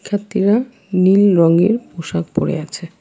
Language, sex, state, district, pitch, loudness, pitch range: Bengali, female, West Bengal, Alipurduar, 190 Hz, -16 LUFS, 170-205 Hz